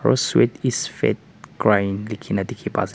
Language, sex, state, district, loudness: Nagamese, male, Nagaland, Kohima, -21 LUFS